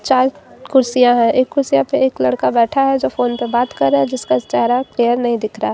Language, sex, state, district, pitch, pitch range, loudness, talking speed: Hindi, female, Jharkhand, Deoghar, 240 Hz, 215-260 Hz, -15 LUFS, 230 wpm